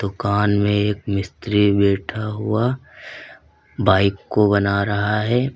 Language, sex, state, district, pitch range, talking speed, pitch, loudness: Hindi, male, Uttar Pradesh, Lalitpur, 100-105 Hz, 120 wpm, 105 Hz, -19 LUFS